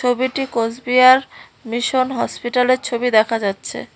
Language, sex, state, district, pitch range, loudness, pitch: Bengali, female, West Bengal, Cooch Behar, 230-255 Hz, -17 LUFS, 245 Hz